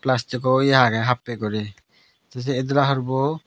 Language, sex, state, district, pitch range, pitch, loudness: Chakma, male, Tripura, Dhalai, 120-135 Hz, 130 Hz, -21 LUFS